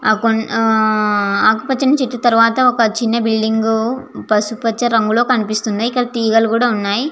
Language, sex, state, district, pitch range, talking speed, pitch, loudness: Telugu, female, Andhra Pradesh, Visakhapatnam, 220-240 Hz, 135 wpm, 225 Hz, -15 LUFS